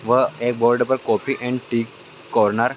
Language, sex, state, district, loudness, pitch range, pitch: Hindi, male, Chhattisgarh, Raigarh, -20 LUFS, 115-125 Hz, 120 Hz